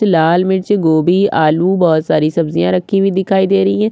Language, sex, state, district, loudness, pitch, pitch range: Hindi, female, Chhattisgarh, Kabirdham, -13 LUFS, 180 Hz, 160-195 Hz